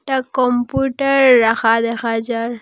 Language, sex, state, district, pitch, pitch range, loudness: Bengali, female, Assam, Hailakandi, 245 Hz, 230-265 Hz, -16 LUFS